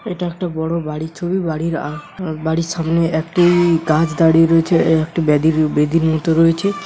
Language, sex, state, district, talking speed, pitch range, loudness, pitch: Bengali, male, West Bengal, Paschim Medinipur, 140 wpm, 160-170 Hz, -16 LUFS, 165 Hz